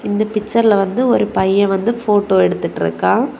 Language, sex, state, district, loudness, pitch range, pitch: Tamil, female, Tamil Nadu, Kanyakumari, -15 LUFS, 195-230 Hz, 210 Hz